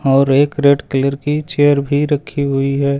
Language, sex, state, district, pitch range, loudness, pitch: Hindi, male, Uttar Pradesh, Lucknow, 140-145 Hz, -15 LUFS, 140 Hz